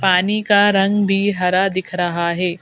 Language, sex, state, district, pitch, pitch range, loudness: Hindi, female, Madhya Pradesh, Bhopal, 190 Hz, 180-205 Hz, -17 LUFS